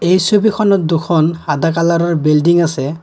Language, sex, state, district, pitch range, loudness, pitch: Assamese, male, Assam, Kamrup Metropolitan, 160-175 Hz, -13 LUFS, 170 Hz